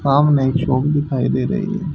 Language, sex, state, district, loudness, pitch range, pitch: Hindi, male, Haryana, Charkhi Dadri, -17 LUFS, 135-155 Hz, 145 Hz